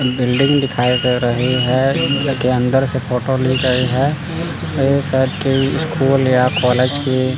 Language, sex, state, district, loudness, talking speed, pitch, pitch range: Hindi, male, Chandigarh, Chandigarh, -16 LUFS, 155 wpm, 130 Hz, 125-135 Hz